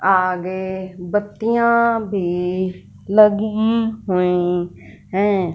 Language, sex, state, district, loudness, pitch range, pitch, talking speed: Hindi, female, Punjab, Fazilka, -19 LUFS, 180-215 Hz, 190 Hz, 65 wpm